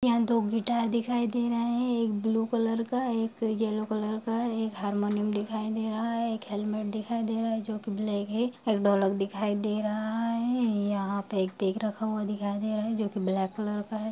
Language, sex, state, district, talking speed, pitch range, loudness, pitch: Hindi, female, Bihar, Sitamarhi, 225 wpm, 210-230 Hz, -29 LUFS, 220 Hz